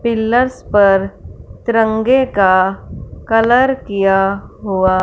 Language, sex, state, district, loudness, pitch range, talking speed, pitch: Hindi, female, Punjab, Fazilka, -14 LUFS, 195-235 Hz, 85 wpm, 210 Hz